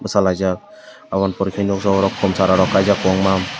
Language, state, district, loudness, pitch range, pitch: Kokborok, Tripura, West Tripura, -17 LUFS, 95-100 Hz, 95 Hz